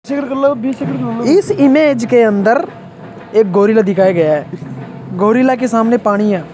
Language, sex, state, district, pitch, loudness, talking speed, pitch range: Hindi, male, Rajasthan, Jaipur, 220 Hz, -12 LUFS, 130 wpm, 190-260 Hz